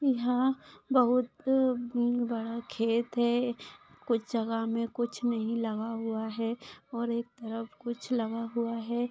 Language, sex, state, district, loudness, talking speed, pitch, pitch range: Hindi, female, Maharashtra, Sindhudurg, -31 LUFS, 130 wpm, 235 Hz, 230-245 Hz